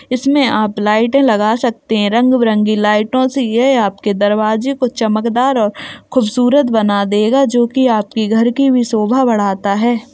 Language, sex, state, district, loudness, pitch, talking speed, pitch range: Hindi, male, Uttar Pradesh, Jalaun, -13 LUFS, 230 Hz, 170 wpm, 215-255 Hz